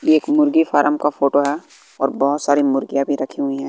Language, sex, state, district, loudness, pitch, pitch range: Hindi, male, Bihar, West Champaran, -18 LUFS, 145 Hz, 140-150 Hz